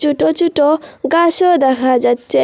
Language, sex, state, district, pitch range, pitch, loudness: Bengali, female, Assam, Hailakandi, 255-335 Hz, 295 Hz, -13 LUFS